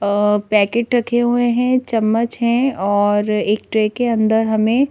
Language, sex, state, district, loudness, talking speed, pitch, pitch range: Hindi, female, Madhya Pradesh, Bhopal, -17 LUFS, 160 wpm, 225 Hz, 210-240 Hz